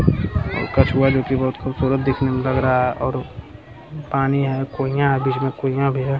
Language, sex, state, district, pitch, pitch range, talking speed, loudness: Hindi, male, Bihar, Jamui, 135 Hz, 130-135 Hz, 195 wpm, -20 LUFS